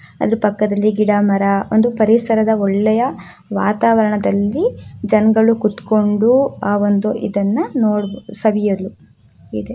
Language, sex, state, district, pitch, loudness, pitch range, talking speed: Kannada, female, Karnataka, Shimoga, 210 Hz, -16 LUFS, 200-220 Hz, 105 wpm